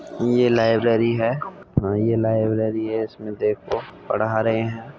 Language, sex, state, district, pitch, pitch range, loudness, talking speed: Hindi, male, Uttar Pradesh, Muzaffarnagar, 110 Hz, 110-115 Hz, -21 LUFS, 145 wpm